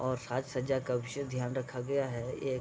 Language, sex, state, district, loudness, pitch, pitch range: Hindi, male, Bihar, Vaishali, -35 LUFS, 130 Hz, 125-135 Hz